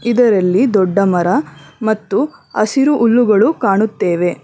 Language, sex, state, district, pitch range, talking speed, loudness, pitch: Kannada, female, Karnataka, Bangalore, 185-235 Hz, 95 wpm, -14 LUFS, 210 Hz